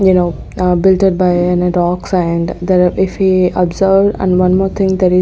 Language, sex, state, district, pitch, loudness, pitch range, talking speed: English, female, Chandigarh, Chandigarh, 185 Hz, -13 LUFS, 180-190 Hz, 220 wpm